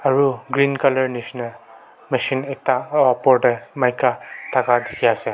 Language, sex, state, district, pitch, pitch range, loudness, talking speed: Nagamese, male, Nagaland, Kohima, 130 Hz, 120-135 Hz, -19 LUFS, 135 wpm